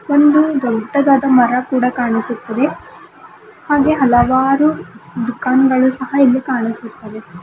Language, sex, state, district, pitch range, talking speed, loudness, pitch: Kannada, female, Karnataka, Bidar, 240-280 Hz, 90 wpm, -14 LUFS, 260 Hz